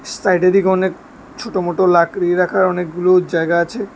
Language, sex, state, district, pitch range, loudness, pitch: Bengali, male, Tripura, West Tripura, 175-195 Hz, -16 LUFS, 185 Hz